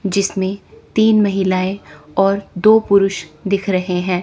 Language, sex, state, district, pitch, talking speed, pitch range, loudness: Hindi, female, Chandigarh, Chandigarh, 195 Hz, 125 wpm, 185-200 Hz, -16 LUFS